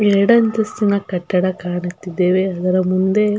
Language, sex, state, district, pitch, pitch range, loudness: Kannada, female, Karnataka, Belgaum, 190 Hz, 180-210 Hz, -17 LUFS